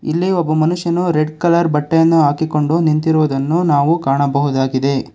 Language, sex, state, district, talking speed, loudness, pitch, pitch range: Kannada, male, Karnataka, Bangalore, 115 wpm, -15 LUFS, 155 Hz, 145-165 Hz